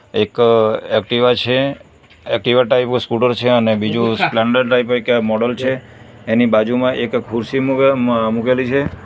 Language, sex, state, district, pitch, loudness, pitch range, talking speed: Gujarati, male, Gujarat, Valsad, 120 Hz, -16 LUFS, 115-125 Hz, 145 wpm